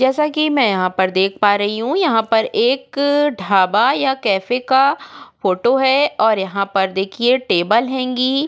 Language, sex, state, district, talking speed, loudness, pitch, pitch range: Hindi, female, Goa, North and South Goa, 170 wpm, -16 LUFS, 240 Hz, 195-265 Hz